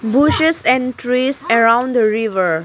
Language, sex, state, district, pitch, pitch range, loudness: English, female, Arunachal Pradesh, Lower Dibang Valley, 245 Hz, 225-255 Hz, -14 LUFS